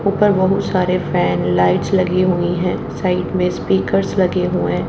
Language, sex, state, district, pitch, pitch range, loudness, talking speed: Hindi, male, Haryana, Jhajjar, 180 Hz, 165-185 Hz, -17 LUFS, 160 wpm